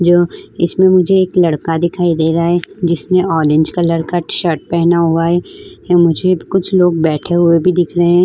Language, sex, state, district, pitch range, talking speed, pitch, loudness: Hindi, female, Uttar Pradesh, Budaun, 165-180 Hz, 195 wpm, 175 Hz, -13 LUFS